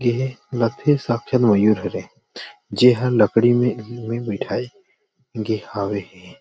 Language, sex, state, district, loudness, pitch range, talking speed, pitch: Chhattisgarhi, male, Chhattisgarh, Rajnandgaon, -20 LUFS, 110-125 Hz, 110 wpm, 120 Hz